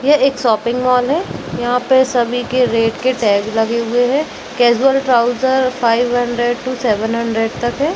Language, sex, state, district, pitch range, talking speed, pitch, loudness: Hindi, female, Jharkhand, Jamtara, 235-255 Hz, 180 wpm, 245 Hz, -15 LUFS